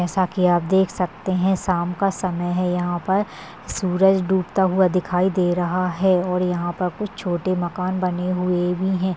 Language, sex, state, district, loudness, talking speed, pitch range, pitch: Hindi, female, Maharashtra, Solapur, -21 LUFS, 190 wpm, 180-190 Hz, 180 Hz